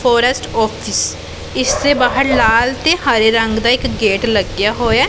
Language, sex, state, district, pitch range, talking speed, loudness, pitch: Punjabi, female, Punjab, Pathankot, 210-255 Hz, 165 wpm, -14 LUFS, 230 Hz